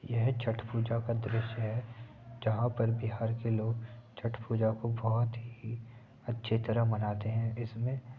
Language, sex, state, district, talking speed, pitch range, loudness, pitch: Hindi, male, Uttar Pradesh, Etah, 160 wpm, 115-120 Hz, -34 LUFS, 115 Hz